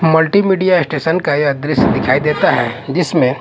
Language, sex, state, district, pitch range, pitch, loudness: Hindi, male, Punjab, Kapurthala, 140-170 Hz, 155 Hz, -14 LUFS